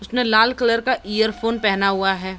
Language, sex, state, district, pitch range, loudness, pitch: Hindi, female, Bihar, East Champaran, 195-230 Hz, -19 LUFS, 220 Hz